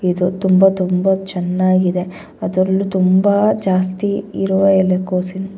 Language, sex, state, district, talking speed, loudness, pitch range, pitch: Kannada, female, Karnataka, Bellary, 95 wpm, -16 LUFS, 185-195 Hz, 185 Hz